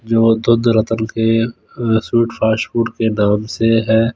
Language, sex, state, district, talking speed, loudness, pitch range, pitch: Hindi, male, Punjab, Fazilka, 145 wpm, -16 LUFS, 110-115 Hz, 115 Hz